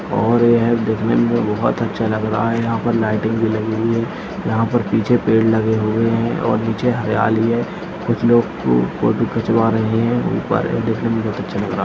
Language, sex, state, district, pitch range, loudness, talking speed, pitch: Hindi, male, Bihar, Madhepura, 110-115 Hz, -18 LUFS, 210 wpm, 115 Hz